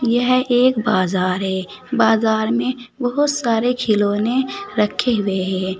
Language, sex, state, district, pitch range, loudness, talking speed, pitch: Hindi, female, Uttar Pradesh, Saharanpur, 205-250 Hz, -18 LUFS, 125 wpm, 230 Hz